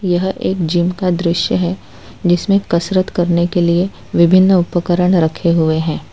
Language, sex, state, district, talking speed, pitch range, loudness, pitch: Hindi, female, Gujarat, Valsad, 155 wpm, 170-185 Hz, -15 LUFS, 175 Hz